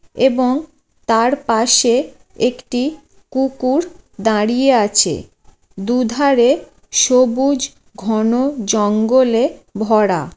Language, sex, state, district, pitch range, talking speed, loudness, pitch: Bengali, female, West Bengal, Jalpaiguri, 225-265 Hz, 75 wpm, -16 LUFS, 245 Hz